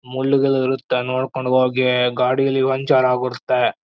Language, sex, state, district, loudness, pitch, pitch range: Kannada, male, Karnataka, Chamarajanagar, -18 LUFS, 130 Hz, 125-130 Hz